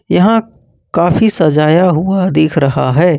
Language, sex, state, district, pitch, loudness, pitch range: Hindi, male, Jharkhand, Ranchi, 170 Hz, -11 LUFS, 155-185 Hz